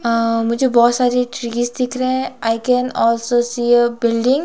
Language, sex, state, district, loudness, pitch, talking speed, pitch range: Hindi, female, Himachal Pradesh, Shimla, -17 LUFS, 240 Hz, 200 wpm, 235-250 Hz